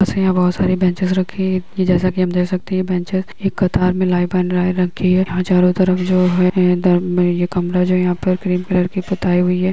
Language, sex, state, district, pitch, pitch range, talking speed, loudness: Hindi, female, Uttar Pradesh, Etah, 180 Hz, 180-185 Hz, 245 wpm, -16 LUFS